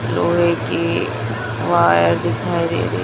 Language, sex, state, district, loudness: Hindi, female, Chhattisgarh, Raipur, -18 LUFS